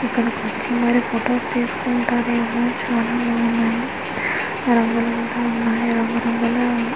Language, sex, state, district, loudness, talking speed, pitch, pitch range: Telugu, female, Andhra Pradesh, Manyam, -20 LUFS, 80 wpm, 235 Hz, 230-245 Hz